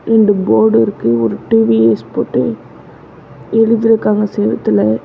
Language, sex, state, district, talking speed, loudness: Tamil, female, Tamil Nadu, Namakkal, 95 wpm, -13 LUFS